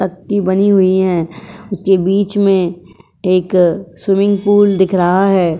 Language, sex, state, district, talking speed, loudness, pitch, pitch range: Hindi, female, Uttar Pradesh, Jyotiba Phule Nagar, 140 wpm, -13 LUFS, 190 Hz, 185-200 Hz